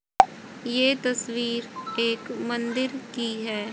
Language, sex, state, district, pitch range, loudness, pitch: Hindi, female, Haryana, Rohtak, 230-255 Hz, -26 LUFS, 240 Hz